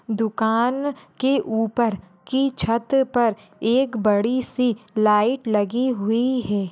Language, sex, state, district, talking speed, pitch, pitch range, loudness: Hindi, female, Rajasthan, Churu, 115 wpm, 230 Hz, 215-255 Hz, -21 LUFS